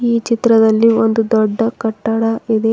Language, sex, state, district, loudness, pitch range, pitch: Kannada, female, Karnataka, Bidar, -14 LUFS, 225-230 Hz, 225 Hz